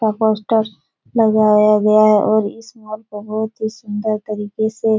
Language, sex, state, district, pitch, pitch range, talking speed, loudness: Hindi, female, Bihar, Supaul, 215 Hz, 210-220 Hz, 180 wpm, -16 LUFS